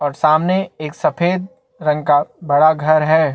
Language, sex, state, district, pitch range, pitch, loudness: Hindi, male, Chhattisgarh, Bastar, 150-180 Hz, 155 Hz, -16 LUFS